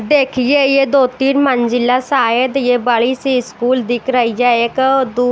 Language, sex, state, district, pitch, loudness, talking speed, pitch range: Hindi, female, Bihar, West Champaran, 255 Hz, -14 LUFS, 180 wpm, 245-270 Hz